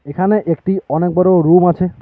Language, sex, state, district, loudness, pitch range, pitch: Bengali, male, West Bengal, Alipurduar, -14 LUFS, 165-185 Hz, 180 Hz